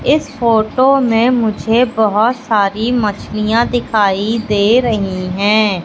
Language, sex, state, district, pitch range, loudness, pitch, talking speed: Hindi, female, Madhya Pradesh, Katni, 210-240 Hz, -14 LUFS, 220 Hz, 115 wpm